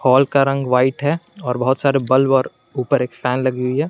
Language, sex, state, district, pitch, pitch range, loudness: Hindi, male, Jharkhand, Garhwa, 130 Hz, 125-140 Hz, -18 LUFS